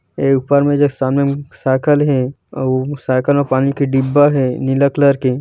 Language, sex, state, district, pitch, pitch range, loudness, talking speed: Hindi, male, Chhattisgarh, Bilaspur, 140 Hz, 130-140 Hz, -15 LUFS, 220 wpm